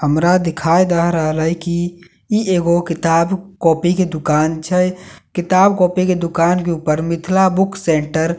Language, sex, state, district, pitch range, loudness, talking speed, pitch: Maithili, male, Bihar, Katihar, 165-185 Hz, -16 LUFS, 155 wpm, 170 Hz